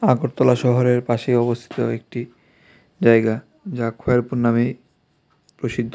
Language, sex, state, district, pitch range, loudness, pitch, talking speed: Bengali, male, Tripura, West Tripura, 120-130 Hz, -20 LUFS, 120 Hz, 100 wpm